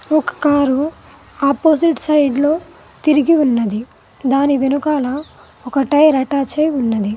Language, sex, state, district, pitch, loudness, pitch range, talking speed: Telugu, female, Telangana, Mahabubabad, 285 Hz, -16 LUFS, 270-305 Hz, 100 wpm